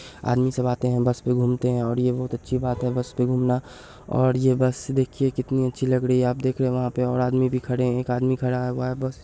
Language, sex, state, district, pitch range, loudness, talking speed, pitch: Hindi, male, Bihar, Saharsa, 125-130 Hz, -23 LUFS, 290 wpm, 125 Hz